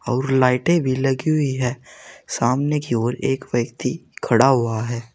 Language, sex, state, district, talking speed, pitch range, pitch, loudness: Hindi, male, Uttar Pradesh, Saharanpur, 165 wpm, 120-135 Hz, 130 Hz, -20 LUFS